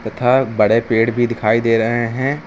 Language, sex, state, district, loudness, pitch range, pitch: Hindi, male, Uttar Pradesh, Lucknow, -16 LUFS, 115-125 Hz, 115 Hz